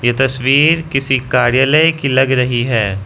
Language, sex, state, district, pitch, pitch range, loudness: Hindi, male, Arunachal Pradesh, Lower Dibang Valley, 130 Hz, 125-135 Hz, -13 LUFS